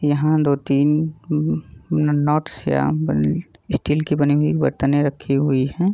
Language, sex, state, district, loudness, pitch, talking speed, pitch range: Hindi, male, Bihar, Begusarai, -20 LUFS, 145 Hz, 150 wpm, 135-150 Hz